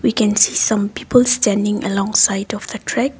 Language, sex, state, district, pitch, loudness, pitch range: English, female, Assam, Kamrup Metropolitan, 210 Hz, -16 LUFS, 205-235 Hz